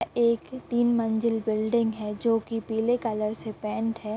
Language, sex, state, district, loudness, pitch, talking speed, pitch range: Hindi, female, Chhattisgarh, Rajnandgaon, -27 LUFS, 225 Hz, 175 wpm, 220-235 Hz